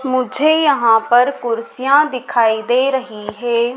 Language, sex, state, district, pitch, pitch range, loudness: Hindi, female, Madhya Pradesh, Dhar, 250 Hz, 235-270 Hz, -15 LUFS